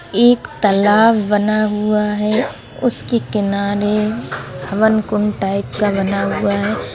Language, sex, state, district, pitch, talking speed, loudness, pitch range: Hindi, male, Uttarakhand, Tehri Garhwal, 210 Hz, 120 wpm, -16 LUFS, 200-215 Hz